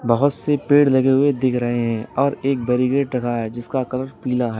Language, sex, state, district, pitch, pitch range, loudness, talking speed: Hindi, male, Uttar Pradesh, Lalitpur, 130 Hz, 120-140 Hz, -19 LUFS, 220 wpm